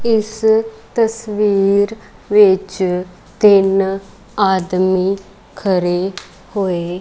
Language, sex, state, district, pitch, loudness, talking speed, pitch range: Punjabi, female, Punjab, Kapurthala, 195 Hz, -16 LUFS, 60 wpm, 185-210 Hz